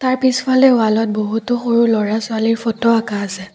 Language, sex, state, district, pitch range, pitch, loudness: Assamese, female, Assam, Kamrup Metropolitan, 215-245 Hz, 225 Hz, -16 LUFS